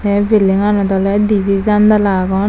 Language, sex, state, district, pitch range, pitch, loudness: Chakma, female, Tripura, Dhalai, 195-210 Hz, 200 Hz, -13 LUFS